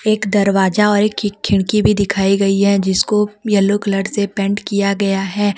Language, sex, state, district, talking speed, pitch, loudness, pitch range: Hindi, female, Jharkhand, Deoghar, 180 wpm, 200 Hz, -15 LUFS, 195-210 Hz